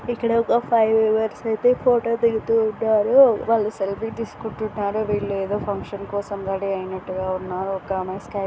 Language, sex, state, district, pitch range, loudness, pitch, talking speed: Telugu, female, Andhra Pradesh, Srikakulam, 195-230 Hz, -22 LUFS, 215 Hz, 150 wpm